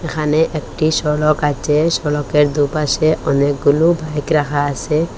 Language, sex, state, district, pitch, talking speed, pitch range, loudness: Bengali, female, Assam, Hailakandi, 150 Hz, 125 wpm, 145-155 Hz, -16 LUFS